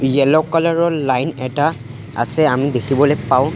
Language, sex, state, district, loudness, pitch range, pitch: Assamese, male, Assam, Sonitpur, -16 LUFS, 130-155 Hz, 140 Hz